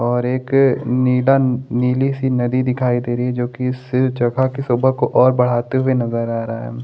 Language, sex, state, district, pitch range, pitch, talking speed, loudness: Hindi, male, Maharashtra, Chandrapur, 120-130 Hz, 125 Hz, 200 wpm, -17 LUFS